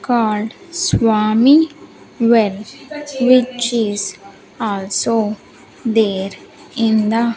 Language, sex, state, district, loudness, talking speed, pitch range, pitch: English, female, Andhra Pradesh, Sri Satya Sai, -16 LUFS, 80 wpm, 210-250 Hz, 225 Hz